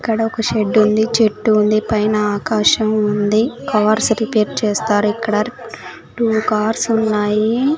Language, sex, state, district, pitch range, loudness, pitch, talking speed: Telugu, female, Andhra Pradesh, Sri Satya Sai, 210-225 Hz, -16 LUFS, 215 Hz, 115 wpm